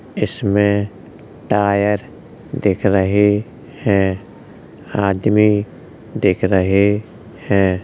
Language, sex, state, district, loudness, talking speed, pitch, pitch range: Hindi, male, Uttar Pradesh, Jalaun, -17 LUFS, 70 wpm, 100 Hz, 95-105 Hz